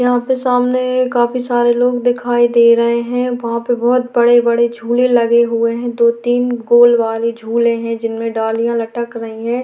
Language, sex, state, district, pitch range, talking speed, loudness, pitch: Hindi, female, Bihar, Vaishali, 235-245 Hz, 180 wpm, -14 LUFS, 240 Hz